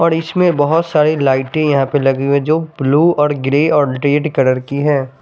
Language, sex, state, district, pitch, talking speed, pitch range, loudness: Hindi, male, Chandigarh, Chandigarh, 145 Hz, 230 wpm, 135-155 Hz, -14 LUFS